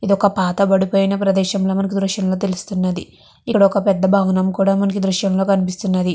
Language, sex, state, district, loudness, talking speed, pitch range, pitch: Telugu, female, Andhra Pradesh, Chittoor, -17 LUFS, 125 wpm, 190-200 Hz, 195 Hz